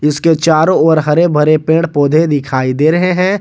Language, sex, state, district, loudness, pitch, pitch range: Hindi, male, Jharkhand, Garhwa, -11 LUFS, 155 Hz, 150-165 Hz